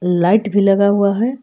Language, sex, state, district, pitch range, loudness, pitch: Hindi, female, Jharkhand, Palamu, 195-215 Hz, -14 LUFS, 200 Hz